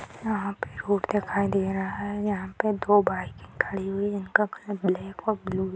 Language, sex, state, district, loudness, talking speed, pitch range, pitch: Hindi, female, Bihar, Purnia, -27 LUFS, 200 wpm, 190-205 Hz, 200 Hz